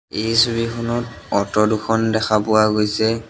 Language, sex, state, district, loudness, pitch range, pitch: Assamese, male, Assam, Sonitpur, -18 LUFS, 105-115 Hz, 110 Hz